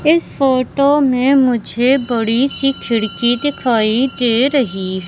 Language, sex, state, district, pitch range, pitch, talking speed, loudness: Hindi, female, Madhya Pradesh, Katni, 230-275 Hz, 255 Hz, 120 wpm, -15 LUFS